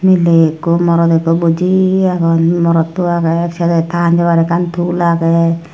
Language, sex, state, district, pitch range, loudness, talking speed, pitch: Chakma, female, Tripura, Dhalai, 165-175 Hz, -12 LUFS, 145 wpm, 170 Hz